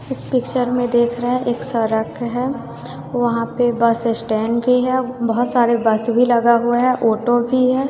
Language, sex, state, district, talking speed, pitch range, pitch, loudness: Hindi, female, Bihar, West Champaran, 190 wpm, 230-250 Hz, 240 Hz, -17 LUFS